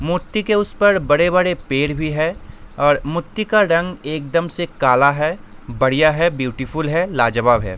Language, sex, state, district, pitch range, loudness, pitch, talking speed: Hindi, male, Bihar, East Champaran, 140-175 Hz, -17 LUFS, 155 Hz, 170 wpm